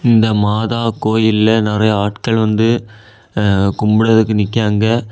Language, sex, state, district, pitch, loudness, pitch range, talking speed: Tamil, male, Tamil Nadu, Kanyakumari, 110 Hz, -14 LUFS, 105-110 Hz, 95 wpm